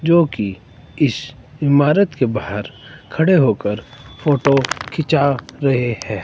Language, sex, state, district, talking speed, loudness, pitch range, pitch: Hindi, male, Himachal Pradesh, Shimla, 105 wpm, -18 LUFS, 115-150 Hz, 140 Hz